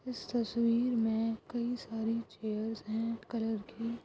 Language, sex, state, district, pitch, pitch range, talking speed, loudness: Hindi, female, Goa, North and South Goa, 230 Hz, 225-235 Hz, 135 wpm, -35 LUFS